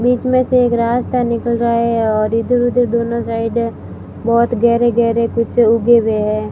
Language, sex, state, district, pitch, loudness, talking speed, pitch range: Hindi, female, Rajasthan, Barmer, 235 Hz, -15 LUFS, 195 wpm, 230-240 Hz